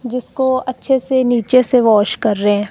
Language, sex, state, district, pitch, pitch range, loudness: Hindi, female, Punjab, Kapurthala, 250 Hz, 215-255 Hz, -15 LUFS